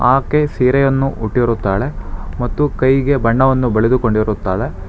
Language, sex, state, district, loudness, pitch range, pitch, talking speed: Kannada, male, Karnataka, Bangalore, -15 LUFS, 110-135 Hz, 125 Hz, 85 wpm